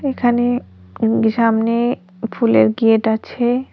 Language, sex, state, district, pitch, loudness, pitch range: Bengali, female, West Bengal, Cooch Behar, 230 Hz, -17 LUFS, 220-240 Hz